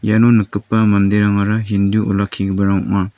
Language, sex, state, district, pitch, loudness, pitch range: Garo, male, Meghalaya, North Garo Hills, 100 Hz, -15 LUFS, 100-110 Hz